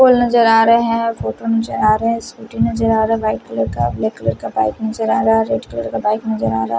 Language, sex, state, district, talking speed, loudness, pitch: Hindi, male, Odisha, Khordha, 280 wpm, -16 LUFS, 215 Hz